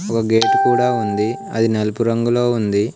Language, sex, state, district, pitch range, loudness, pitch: Telugu, male, Telangana, Komaram Bheem, 110-120 Hz, -17 LUFS, 115 Hz